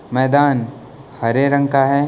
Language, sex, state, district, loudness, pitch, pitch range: Hindi, male, Uttar Pradesh, Lucknow, -16 LUFS, 135 Hz, 130-140 Hz